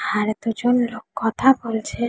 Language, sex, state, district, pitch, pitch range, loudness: Bengali, female, West Bengal, Jhargram, 225 Hz, 220-240 Hz, -21 LUFS